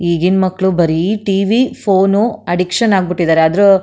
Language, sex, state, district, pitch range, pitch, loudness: Kannada, female, Karnataka, Mysore, 175-200 Hz, 190 Hz, -13 LUFS